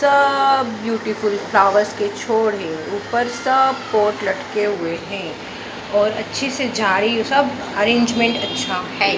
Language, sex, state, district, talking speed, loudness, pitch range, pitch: Hindi, female, Maharashtra, Mumbai Suburban, 150 wpm, -18 LUFS, 205-260 Hz, 220 Hz